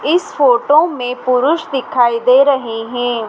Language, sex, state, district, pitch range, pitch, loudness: Hindi, female, Madhya Pradesh, Dhar, 240-285 Hz, 255 Hz, -14 LUFS